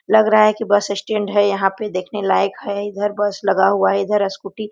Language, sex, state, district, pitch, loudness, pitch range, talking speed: Hindi, female, Chhattisgarh, Korba, 205 Hz, -18 LUFS, 195-210 Hz, 255 wpm